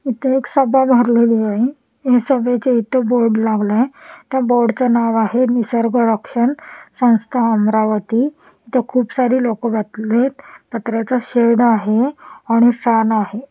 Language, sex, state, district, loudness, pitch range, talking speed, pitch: Marathi, female, Maharashtra, Washim, -16 LUFS, 225-255 Hz, 135 wpm, 240 Hz